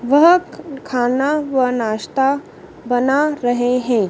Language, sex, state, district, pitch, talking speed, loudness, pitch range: Hindi, female, Madhya Pradesh, Dhar, 260 Hz, 115 wpm, -17 LUFS, 245-285 Hz